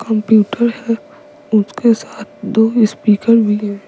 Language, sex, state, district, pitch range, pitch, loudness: Hindi, female, Bihar, Patna, 210-235 Hz, 220 Hz, -14 LUFS